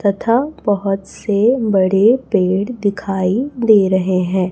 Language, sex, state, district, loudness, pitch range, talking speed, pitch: Hindi, female, Chhattisgarh, Raipur, -16 LUFS, 190-230 Hz, 120 wpm, 200 Hz